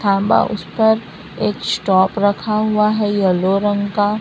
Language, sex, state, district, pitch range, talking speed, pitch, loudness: Hindi, female, Maharashtra, Mumbai Suburban, 195-215 Hz, 155 wpm, 205 Hz, -17 LUFS